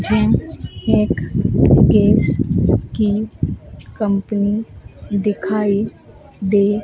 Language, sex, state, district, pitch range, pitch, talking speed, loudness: Hindi, female, Madhya Pradesh, Dhar, 200-210 Hz, 205 Hz, 60 wpm, -17 LUFS